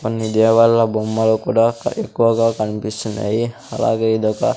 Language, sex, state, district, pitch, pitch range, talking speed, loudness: Telugu, male, Andhra Pradesh, Sri Satya Sai, 110 Hz, 110-115 Hz, 105 wpm, -17 LUFS